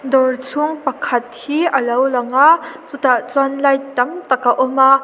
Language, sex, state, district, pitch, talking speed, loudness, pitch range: Mizo, female, Mizoram, Aizawl, 270 Hz, 180 wpm, -16 LUFS, 255-285 Hz